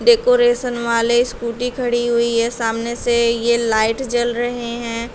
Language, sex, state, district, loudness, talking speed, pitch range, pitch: Hindi, female, Uttar Pradesh, Shamli, -18 LUFS, 150 wpm, 235-245 Hz, 235 Hz